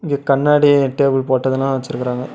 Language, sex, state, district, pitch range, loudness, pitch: Tamil, male, Tamil Nadu, Namakkal, 130-145 Hz, -16 LUFS, 135 Hz